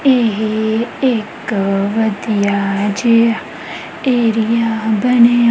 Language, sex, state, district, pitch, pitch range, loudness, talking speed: Punjabi, female, Punjab, Kapurthala, 225 Hz, 215-235 Hz, -15 LUFS, 65 wpm